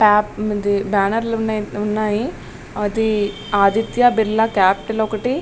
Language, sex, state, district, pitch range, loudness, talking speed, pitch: Telugu, female, Andhra Pradesh, Srikakulam, 205-220 Hz, -18 LUFS, 100 wpm, 215 Hz